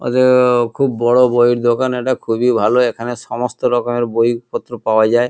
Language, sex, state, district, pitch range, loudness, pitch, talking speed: Bengali, male, West Bengal, Kolkata, 120-125 Hz, -15 LUFS, 120 Hz, 160 wpm